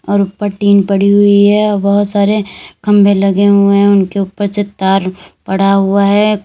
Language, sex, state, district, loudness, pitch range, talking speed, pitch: Hindi, female, Uttar Pradesh, Lalitpur, -11 LUFS, 195-205 Hz, 185 wpm, 200 Hz